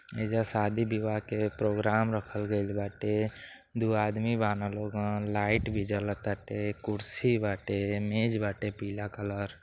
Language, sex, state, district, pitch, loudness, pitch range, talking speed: Bhojpuri, male, Uttar Pradesh, Deoria, 105 Hz, -30 LUFS, 105-110 Hz, 135 wpm